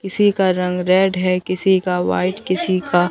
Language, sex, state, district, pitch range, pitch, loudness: Hindi, female, Bihar, Katihar, 180-190 Hz, 185 Hz, -18 LUFS